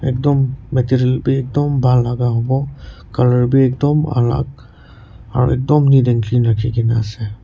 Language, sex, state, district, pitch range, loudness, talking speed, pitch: Nagamese, male, Nagaland, Kohima, 115-135 Hz, -16 LUFS, 155 wpm, 125 Hz